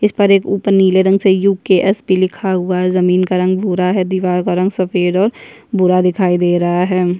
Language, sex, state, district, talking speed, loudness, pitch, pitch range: Hindi, female, Chhattisgarh, Bastar, 240 wpm, -14 LUFS, 185 Hz, 180-195 Hz